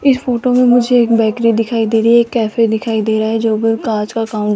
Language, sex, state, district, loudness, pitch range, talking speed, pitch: Hindi, female, Rajasthan, Jaipur, -14 LUFS, 220-235 Hz, 265 wpm, 225 Hz